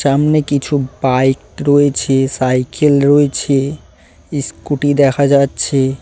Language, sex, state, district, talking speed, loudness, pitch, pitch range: Bengali, male, West Bengal, Cooch Behar, 90 wpm, -14 LUFS, 140 Hz, 130-145 Hz